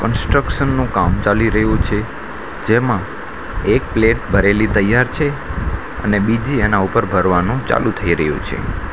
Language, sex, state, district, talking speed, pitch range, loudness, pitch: Gujarati, male, Gujarat, Valsad, 135 wpm, 95-115 Hz, -16 LUFS, 105 Hz